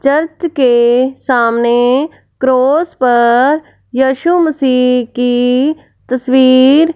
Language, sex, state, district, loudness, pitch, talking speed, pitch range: Hindi, female, Punjab, Fazilka, -11 LUFS, 260 Hz, 80 wpm, 245-295 Hz